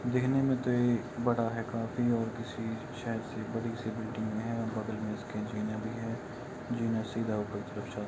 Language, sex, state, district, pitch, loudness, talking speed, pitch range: Hindi, male, Bihar, Saran, 115 Hz, -34 LUFS, 210 wpm, 110-120 Hz